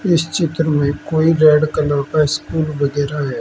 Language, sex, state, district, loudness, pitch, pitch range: Hindi, male, Uttar Pradesh, Saharanpur, -16 LUFS, 155 Hz, 145-160 Hz